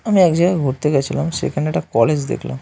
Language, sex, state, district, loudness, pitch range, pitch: Bengali, male, West Bengal, North 24 Parganas, -18 LUFS, 135-170 Hz, 150 Hz